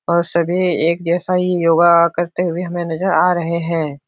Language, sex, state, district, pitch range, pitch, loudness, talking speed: Hindi, male, Uttar Pradesh, Etah, 170-175 Hz, 170 Hz, -16 LUFS, 190 wpm